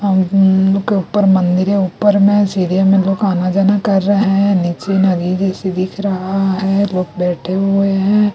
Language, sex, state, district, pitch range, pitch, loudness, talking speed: Hindi, female, Chhattisgarh, Raipur, 185-200 Hz, 195 Hz, -14 LUFS, 195 wpm